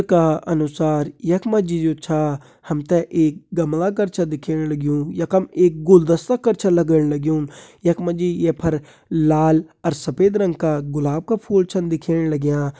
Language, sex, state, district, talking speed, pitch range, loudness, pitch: Kumaoni, male, Uttarakhand, Uttarkashi, 165 wpm, 155-180 Hz, -19 LUFS, 165 Hz